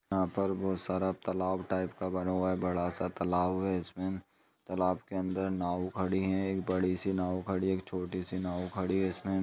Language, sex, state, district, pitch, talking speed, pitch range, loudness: Hindi, male, Uttar Pradesh, Jalaun, 95 Hz, 210 wpm, 90-95 Hz, -33 LUFS